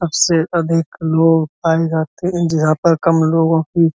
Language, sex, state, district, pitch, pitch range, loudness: Hindi, male, Uttar Pradesh, Muzaffarnagar, 165 Hz, 160-170 Hz, -15 LUFS